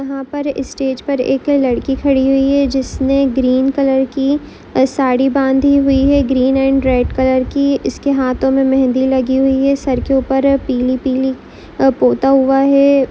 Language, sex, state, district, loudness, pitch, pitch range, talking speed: Hindi, female, Goa, North and South Goa, -14 LUFS, 270 Hz, 260-275 Hz, 175 wpm